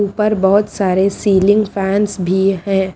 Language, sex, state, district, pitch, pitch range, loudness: Hindi, female, Haryana, Rohtak, 195 Hz, 190-205 Hz, -15 LUFS